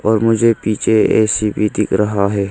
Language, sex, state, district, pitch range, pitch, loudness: Hindi, male, Arunachal Pradesh, Longding, 105-110 Hz, 105 Hz, -15 LUFS